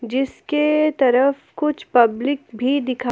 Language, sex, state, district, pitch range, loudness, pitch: Hindi, female, Jharkhand, Palamu, 250-300 Hz, -19 LUFS, 270 Hz